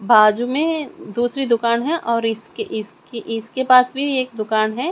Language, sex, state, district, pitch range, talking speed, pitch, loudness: Hindi, female, Chandigarh, Chandigarh, 225-270 Hz, 170 wpm, 240 Hz, -19 LUFS